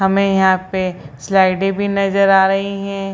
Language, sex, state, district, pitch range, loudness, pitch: Hindi, female, Bihar, Purnia, 190-195 Hz, -15 LUFS, 195 Hz